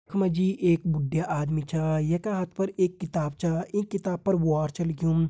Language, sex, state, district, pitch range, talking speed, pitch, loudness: Hindi, male, Uttarakhand, Uttarkashi, 160-185 Hz, 215 wpm, 170 Hz, -27 LUFS